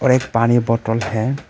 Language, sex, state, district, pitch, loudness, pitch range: Hindi, male, Arunachal Pradesh, Papum Pare, 115 Hz, -18 LUFS, 115-130 Hz